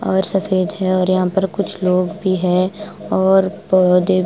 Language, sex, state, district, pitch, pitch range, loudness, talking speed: Hindi, female, Bihar, West Champaran, 185 Hz, 185-195 Hz, -17 LUFS, 170 wpm